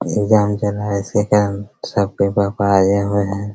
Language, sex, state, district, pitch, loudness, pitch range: Hindi, male, Bihar, Araria, 100 Hz, -17 LUFS, 100-105 Hz